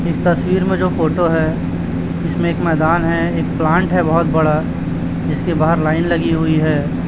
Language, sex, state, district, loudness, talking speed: Hindi, male, Chhattisgarh, Raipur, -16 LUFS, 180 wpm